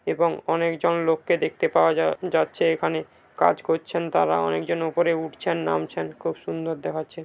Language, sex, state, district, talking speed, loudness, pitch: Bengali, male, West Bengal, Paschim Medinipur, 150 wpm, -24 LUFS, 155 Hz